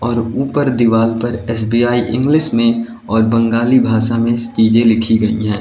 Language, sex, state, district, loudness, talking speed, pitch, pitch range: Hindi, male, Uttar Pradesh, Lalitpur, -14 LUFS, 160 wpm, 115 Hz, 115-120 Hz